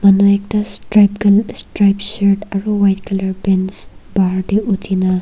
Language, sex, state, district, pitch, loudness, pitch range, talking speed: Nagamese, female, Nagaland, Kohima, 200 Hz, -15 LUFS, 190-205 Hz, 150 wpm